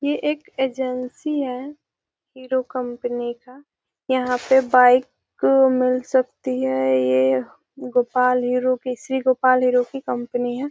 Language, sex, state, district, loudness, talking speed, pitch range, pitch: Hindi, female, Bihar, Gopalganj, -20 LUFS, 130 wpm, 245-265 Hz, 255 Hz